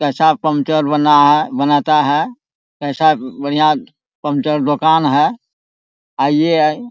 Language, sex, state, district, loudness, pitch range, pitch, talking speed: Hindi, male, Bihar, Araria, -14 LUFS, 145-155 Hz, 150 Hz, 105 wpm